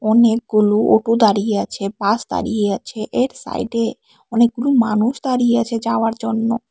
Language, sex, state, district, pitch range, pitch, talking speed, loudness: Bengali, female, Tripura, West Tripura, 215-235 Hz, 230 Hz, 135 wpm, -18 LUFS